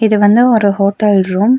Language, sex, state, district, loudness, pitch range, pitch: Tamil, female, Tamil Nadu, Nilgiris, -11 LUFS, 200-220 Hz, 210 Hz